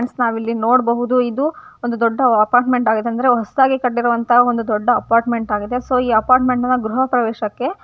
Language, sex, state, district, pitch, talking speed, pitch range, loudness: Kannada, female, Karnataka, Gulbarga, 245 Hz, 170 wpm, 230-255 Hz, -17 LUFS